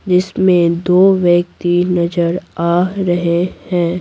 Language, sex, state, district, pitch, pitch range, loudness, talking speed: Hindi, female, Bihar, Patna, 175 Hz, 170-180 Hz, -14 LUFS, 105 wpm